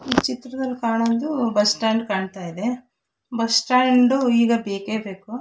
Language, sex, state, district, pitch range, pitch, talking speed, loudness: Kannada, female, Karnataka, Shimoga, 215-250 Hz, 235 Hz, 120 wpm, -21 LUFS